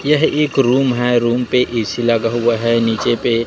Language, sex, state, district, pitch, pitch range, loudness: Hindi, male, Chhattisgarh, Raipur, 120 Hz, 115-130 Hz, -16 LUFS